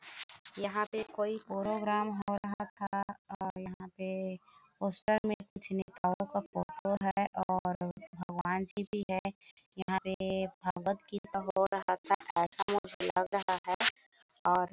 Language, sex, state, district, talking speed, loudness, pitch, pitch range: Hindi, female, Chhattisgarh, Bilaspur, 145 wpm, -35 LUFS, 195 Hz, 185-205 Hz